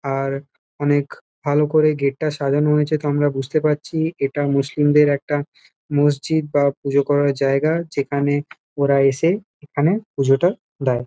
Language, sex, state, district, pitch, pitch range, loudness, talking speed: Bengali, male, West Bengal, Kolkata, 145 Hz, 140-155 Hz, -19 LUFS, 140 wpm